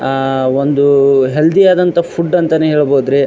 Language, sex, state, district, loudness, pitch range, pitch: Kannada, male, Karnataka, Dharwad, -12 LUFS, 135-170 Hz, 140 Hz